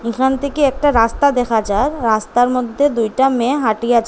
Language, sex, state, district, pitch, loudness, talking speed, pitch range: Bengali, female, Assam, Hailakandi, 245 Hz, -16 LUFS, 175 wpm, 230-280 Hz